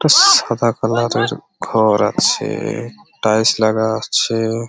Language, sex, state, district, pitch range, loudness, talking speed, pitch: Bengali, male, West Bengal, Purulia, 110-135 Hz, -15 LUFS, 115 wpm, 115 Hz